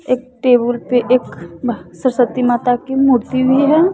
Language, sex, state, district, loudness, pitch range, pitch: Hindi, female, Bihar, West Champaran, -15 LUFS, 240-260 Hz, 250 Hz